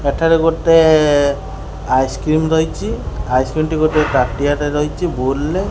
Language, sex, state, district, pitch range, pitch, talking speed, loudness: Odia, male, Odisha, Khordha, 130-160 Hz, 145 Hz, 125 wpm, -15 LUFS